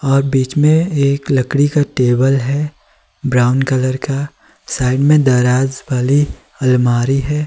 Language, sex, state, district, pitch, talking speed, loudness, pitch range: Hindi, male, Himachal Pradesh, Shimla, 135 Hz, 135 wpm, -15 LUFS, 130-145 Hz